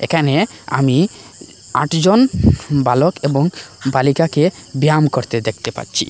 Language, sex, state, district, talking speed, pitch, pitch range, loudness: Bengali, male, Assam, Hailakandi, 100 wpm, 145 Hz, 130-165 Hz, -16 LUFS